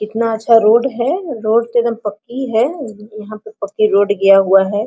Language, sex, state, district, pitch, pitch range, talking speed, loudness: Hindi, female, Jharkhand, Sahebganj, 220 Hz, 210-235 Hz, 170 wpm, -14 LUFS